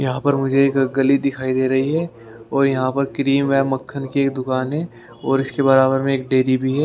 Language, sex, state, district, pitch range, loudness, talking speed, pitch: Hindi, male, Haryana, Rohtak, 130-140 Hz, -19 LUFS, 235 wpm, 135 Hz